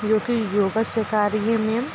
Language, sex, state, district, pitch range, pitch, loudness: Hindi, female, Bihar, Darbhanga, 210-225 Hz, 220 Hz, -22 LUFS